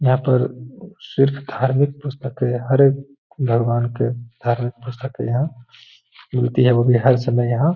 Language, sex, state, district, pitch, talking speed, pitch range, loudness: Hindi, male, Bihar, Gaya, 125 Hz, 155 wpm, 120-135 Hz, -19 LUFS